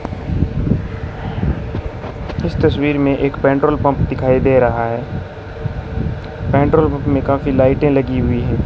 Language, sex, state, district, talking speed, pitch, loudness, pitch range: Hindi, male, Rajasthan, Bikaner, 125 wpm, 135 Hz, -17 LUFS, 120-140 Hz